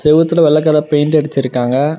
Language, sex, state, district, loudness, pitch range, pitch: Tamil, male, Tamil Nadu, Namakkal, -13 LUFS, 145-155 Hz, 150 Hz